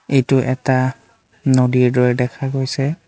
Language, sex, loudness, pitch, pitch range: Assamese, male, -17 LUFS, 130 Hz, 125-135 Hz